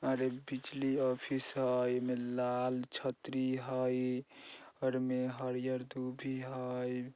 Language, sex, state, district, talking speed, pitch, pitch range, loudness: Bajjika, male, Bihar, Vaishali, 115 wpm, 130 Hz, 125-130 Hz, -37 LUFS